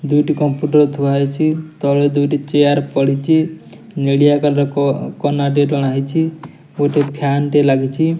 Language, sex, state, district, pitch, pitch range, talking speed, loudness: Odia, male, Odisha, Nuapada, 145 Hz, 140-150 Hz, 115 wpm, -16 LUFS